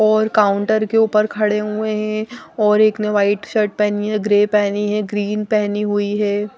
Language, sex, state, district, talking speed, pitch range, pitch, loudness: Hindi, female, Odisha, Nuapada, 190 wpm, 205-215 Hz, 210 Hz, -17 LUFS